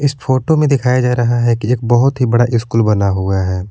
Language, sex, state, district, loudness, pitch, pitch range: Hindi, male, Jharkhand, Palamu, -14 LUFS, 120 Hz, 110-130 Hz